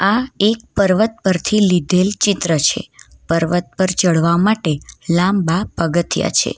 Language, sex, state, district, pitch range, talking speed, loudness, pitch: Gujarati, female, Gujarat, Valsad, 170-200 Hz, 130 wpm, -16 LUFS, 185 Hz